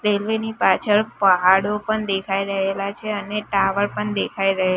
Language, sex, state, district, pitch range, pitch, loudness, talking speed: Gujarati, female, Gujarat, Gandhinagar, 195-210 Hz, 200 Hz, -20 LUFS, 165 wpm